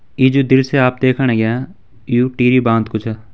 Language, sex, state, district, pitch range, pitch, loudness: Hindi, male, Uttarakhand, Tehri Garhwal, 115-130 Hz, 125 Hz, -15 LUFS